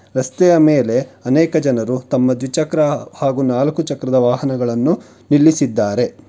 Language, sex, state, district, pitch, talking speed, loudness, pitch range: Kannada, male, Karnataka, Bangalore, 135 Hz, 105 wpm, -16 LUFS, 125-150 Hz